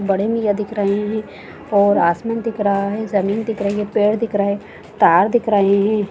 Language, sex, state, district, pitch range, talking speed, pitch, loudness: Hindi, female, Bihar, Lakhisarai, 200-220 Hz, 215 wpm, 205 Hz, -18 LUFS